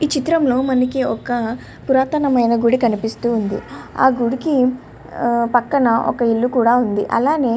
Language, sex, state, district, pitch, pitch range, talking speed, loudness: Telugu, female, Andhra Pradesh, Krishna, 245 Hz, 235-265 Hz, 80 wpm, -17 LUFS